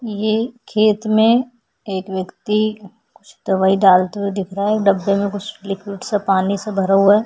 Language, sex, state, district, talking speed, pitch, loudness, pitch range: Hindi, female, Chhattisgarh, Sukma, 175 wpm, 200 Hz, -18 LUFS, 195-215 Hz